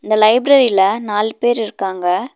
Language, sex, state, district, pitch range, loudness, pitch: Tamil, female, Tamil Nadu, Nilgiris, 195-240 Hz, -15 LUFS, 215 Hz